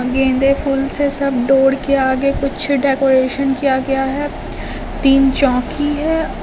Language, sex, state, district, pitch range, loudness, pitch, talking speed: Hindi, female, Bihar, Katihar, 270-280 Hz, -15 LUFS, 275 Hz, 140 wpm